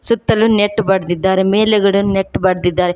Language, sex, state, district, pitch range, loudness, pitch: Kannada, female, Karnataka, Koppal, 185-210 Hz, -14 LUFS, 195 Hz